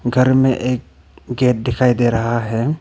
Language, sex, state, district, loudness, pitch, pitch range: Hindi, male, Arunachal Pradesh, Papum Pare, -17 LUFS, 125 Hz, 120-130 Hz